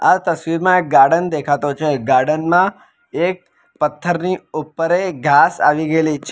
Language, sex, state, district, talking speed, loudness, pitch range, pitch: Gujarati, male, Gujarat, Valsad, 150 wpm, -16 LUFS, 150-180 Hz, 165 Hz